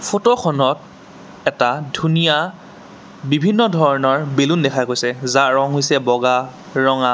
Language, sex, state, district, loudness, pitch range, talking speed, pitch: Assamese, male, Assam, Sonitpur, -17 LUFS, 130-160 Hz, 115 wpm, 140 Hz